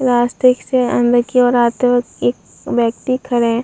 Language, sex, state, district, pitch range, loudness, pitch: Hindi, female, Uttar Pradesh, Muzaffarnagar, 240-250 Hz, -15 LUFS, 245 Hz